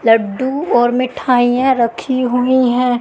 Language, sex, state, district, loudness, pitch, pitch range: Hindi, female, Madhya Pradesh, Katni, -14 LUFS, 250 Hz, 240-260 Hz